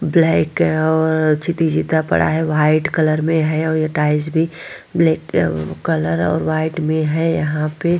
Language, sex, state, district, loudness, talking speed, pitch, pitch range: Hindi, female, Bihar, Vaishali, -17 LUFS, 170 wpm, 155 Hz, 150-160 Hz